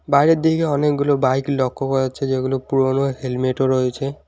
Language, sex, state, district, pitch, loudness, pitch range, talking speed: Bengali, male, West Bengal, Alipurduar, 135 Hz, -19 LUFS, 130-145 Hz, 155 wpm